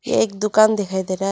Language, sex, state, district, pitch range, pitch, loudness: Hindi, female, Arunachal Pradesh, Lower Dibang Valley, 190-215 Hz, 200 Hz, -18 LUFS